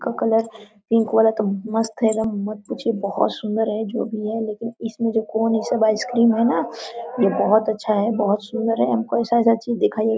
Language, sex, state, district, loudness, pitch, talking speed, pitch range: Hindi, female, Jharkhand, Sahebganj, -21 LUFS, 220 Hz, 210 wpm, 215-230 Hz